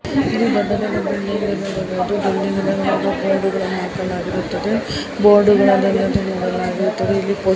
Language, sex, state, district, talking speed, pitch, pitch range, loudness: Kannada, female, Karnataka, Dharwad, 135 wpm, 195 Hz, 190-200 Hz, -18 LUFS